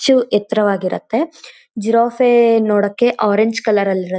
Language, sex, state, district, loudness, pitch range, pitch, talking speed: Kannada, female, Karnataka, Shimoga, -15 LUFS, 205-240 Hz, 220 Hz, 130 wpm